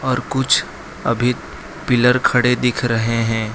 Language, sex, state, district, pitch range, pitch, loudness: Hindi, male, Gujarat, Valsad, 115-125 Hz, 125 Hz, -17 LUFS